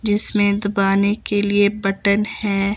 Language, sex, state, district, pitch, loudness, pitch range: Hindi, female, Himachal Pradesh, Shimla, 205 Hz, -17 LUFS, 200-205 Hz